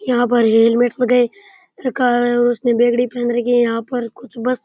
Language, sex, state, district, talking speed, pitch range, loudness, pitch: Rajasthani, male, Rajasthan, Churu, 220 wpm, 240-250 Hz, -16 LUFS, 245 Hz